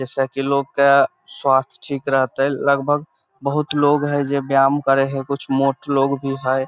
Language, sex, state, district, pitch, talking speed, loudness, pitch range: Maithili, male, Bihar, Samastipur, 140 Hz, 180 wpm, -19 LUFS, 135-140 Hz